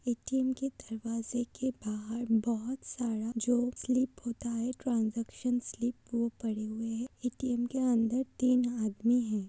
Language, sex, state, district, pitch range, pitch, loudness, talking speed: Hindi, female, Uttar Pradesh, Budaun, 230-250 Hz, 240 Hz, -33 LUFS, 145 wpm